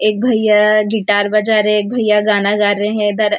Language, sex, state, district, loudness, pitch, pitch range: Hindi, female, Maharashtra, Nagpur, -14 LUFS, 210 Hz, 210-215 Hz